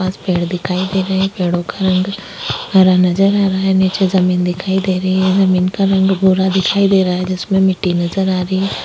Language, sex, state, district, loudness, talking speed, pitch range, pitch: Hindi, female, Chhattisgarh, Sukma, -15 LUFS, 230 wpm, 185-190 Hz, 190 Hz